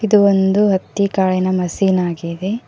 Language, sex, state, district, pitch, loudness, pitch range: Kannada, female, Karnataka, Koppal, 190 Hz, -16 LUFS, 185-200 Hz